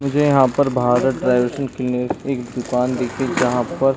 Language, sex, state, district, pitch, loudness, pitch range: Hindi, male, Bihar, Saran, 125 Hz, -19 LUFS, 125-135 Hz